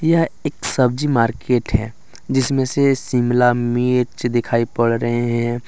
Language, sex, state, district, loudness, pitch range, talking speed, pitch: Hindi, male, Jharkhand, Deoghar, -18 LUFS, 120-130 Hz, 135 wpm, 120 Hz